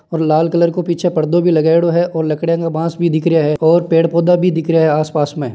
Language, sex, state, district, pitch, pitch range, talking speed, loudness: Marwari, male, Rajasthan, Nagaur, 165 Hz, 155-170 Hz, 225 wpm, -14 LUFS